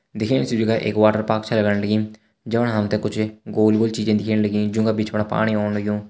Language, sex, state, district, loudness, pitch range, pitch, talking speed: Hindi, male, Uttarakhand, Uttarkashi, -20 LUFS, 105-110 Hz, 110 Hz, 245 wpm